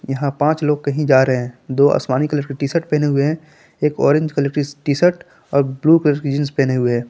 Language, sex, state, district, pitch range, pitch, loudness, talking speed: Hindi, male, Jharkhand, Palamu, 135-150 Hz, 145 Hz, -17 LUFS, 235 wpm